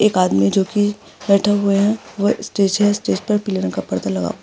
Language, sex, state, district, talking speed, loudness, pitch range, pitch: Hindi, female, Maharashtra, Aurangabad, 245 wpm, -18 LUFS, 185-205 Hz, 200 Hz